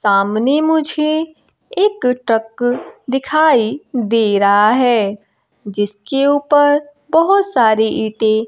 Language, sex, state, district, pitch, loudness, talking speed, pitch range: Hindi, female, Bihar, Kaimur, 250 Hz, -15 LUFS, 90 wpm, 220-295 Hz